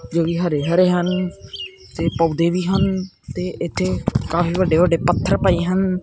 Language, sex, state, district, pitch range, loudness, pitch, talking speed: Punjabi, male, Punjab, Kapurthala, 165-185 Hz, -19 LUFS, 175 Hz, 160 wpm